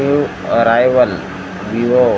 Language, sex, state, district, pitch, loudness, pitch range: Marathi, male, Maharashtra, Gondia, 115 Hz, -14 LUFS, 100-125 Hz